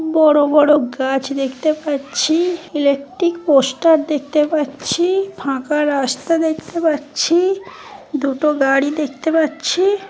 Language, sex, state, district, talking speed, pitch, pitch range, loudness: Bengali, female, West Bengal, Paschim Medinipur, 105 wpm, 300 Hz, 280-325 Hz, -17 LUFS